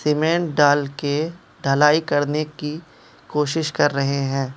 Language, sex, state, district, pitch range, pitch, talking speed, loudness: Hindi, male, Manipur, Imphal West, 145-155 Hz, 150 Hz, 130 wpm, -20 LUFS